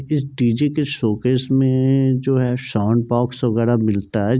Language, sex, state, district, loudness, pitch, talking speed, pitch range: Hindi, male, Bihar, Darbhanga, -19 LUFS, 125 Hz, 165 wpm, 115-135 Hz